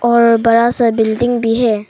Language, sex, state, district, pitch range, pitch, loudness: Hindi, female, Arunachal Pradesh, Papum Pare, 225-240 Hz, 230 Hz, -13 LUFS